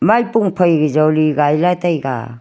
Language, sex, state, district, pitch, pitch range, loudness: Wancho, female, Arunachal Pradesh, Longding, 155 Hz, 150-180 Hz, -15 LUFS